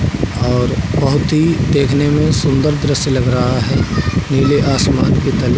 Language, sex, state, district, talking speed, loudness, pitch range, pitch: Hindi, male, Uttar Pradesh, Budaun, 160 wpm, -14 LUFS, 125-145 Hz, 140 Hz